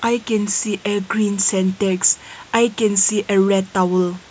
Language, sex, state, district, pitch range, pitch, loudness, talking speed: English, female, Nagaland, Kohima, 190-215 Hz, 200 Hz, -18 LUFS, 165 wpm